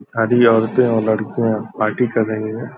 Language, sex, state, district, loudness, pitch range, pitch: Hindi, male, Bihar, Purnia, -17 LUFS, 110-120 Hz, 115 Hz